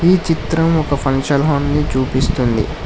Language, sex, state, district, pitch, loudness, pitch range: Telugu, male, Telangana, Hyderabad, 145 Hz, -16 LUFS, 130-160 Hz